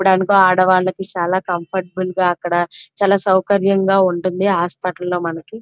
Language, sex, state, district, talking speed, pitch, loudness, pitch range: Telugu, female, Andhra Pradesh, Krishna, 130 wpm, 185 Hz, -17 LUFS, 180-195 Hz